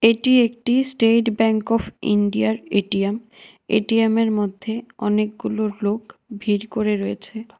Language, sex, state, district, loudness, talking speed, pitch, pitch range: Bengali, female, Tripura, West Tripura, -20 LUFS, 110 wpm, 220 Hz, 205-230 Hz